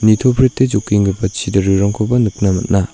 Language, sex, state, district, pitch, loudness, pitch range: Garo, male, Meghalaya, North Garo Hills, 105 Hz, -15 LUFS, 95-120 Hz